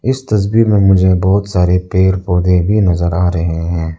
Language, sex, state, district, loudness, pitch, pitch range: Hindi, male, Arunachal Pradesh, Lower Dibang Valley, -13 LUFS, 95 Hz, 90-100 Hz